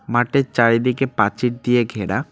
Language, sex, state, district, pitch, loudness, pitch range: Bengali, male, West Bengal, Cooch Behar, 120 Hz, -19 LUFS, 115-125 Hz